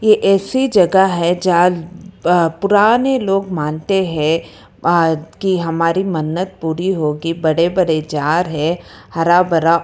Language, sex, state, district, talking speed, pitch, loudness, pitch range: Hindi, female, Karnataka, Bangalore, 120 wpm, 175 Hz, -15 LUFS, 165-190 Hz